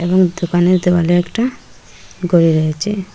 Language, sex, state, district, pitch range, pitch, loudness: Bengali, female, Assam, Hailakandi, 175-185 Hz, 175 Hz, -15 LUFS